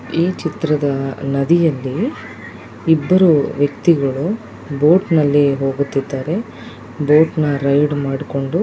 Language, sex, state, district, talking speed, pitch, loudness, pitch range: Kannada, female, Karnataka, Dakshina Kannada, 70 wpm, 145 Hz, -16 LUFS, 140-165 Hz